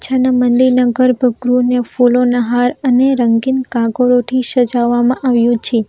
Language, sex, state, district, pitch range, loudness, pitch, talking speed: Gujarati, female, Gujarat, Valsad, 240-255 Hz, -13 LUFS, 250 Hz, 110 wpm